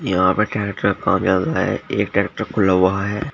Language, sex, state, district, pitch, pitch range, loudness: Hindi, male, Uttar Pradesh, Shamli, 100 Hz, 95-105 Hz, -19 LUFS